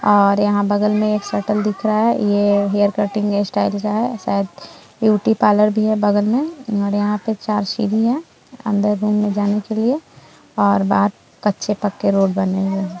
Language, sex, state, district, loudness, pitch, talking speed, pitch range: Hindi, female, Bihar, East Champaran, -18 LUFS, 210 Hz, 190 wpm, 205-215 Hz